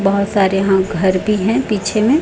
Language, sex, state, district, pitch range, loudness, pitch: Hindi, female, Chhattisgarh, Raipur, 195-215 Hz, -15 LUFS, 200 Hz